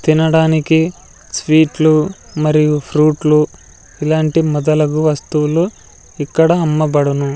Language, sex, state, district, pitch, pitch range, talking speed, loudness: Telugu, male, Andhra Pradesh, Sri Satya Sai, 155 Hz, 150-160 Hz, 75 wpm, -14 LUFS